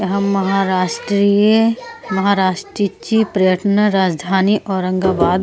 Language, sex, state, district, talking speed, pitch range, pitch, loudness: Hindi, female, Delhi, New Delhi, 75 wpm, 190-205 Hz, 195 Hz, -16 LUFS